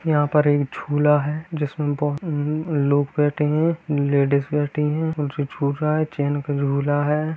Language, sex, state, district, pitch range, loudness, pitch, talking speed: Hindi, male, Bihar, Kishanganj, 145-150 Hz, -21 LUFS, 150 Hz, 180 wpm